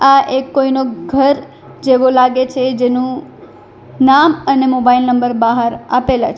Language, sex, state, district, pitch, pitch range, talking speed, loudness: Gujarati, female, Gujarat, Valsad, 260 Hz, 250-270 Hz, 140 wpm, -13 LUFS